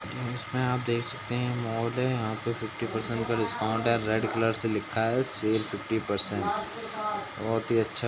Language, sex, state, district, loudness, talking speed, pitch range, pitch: Hindi, male, Uttar Pradesh, Jyotiba Phule Nagar, -29 LUFS, 195 wpm, 110-125 Hz, 115 Hz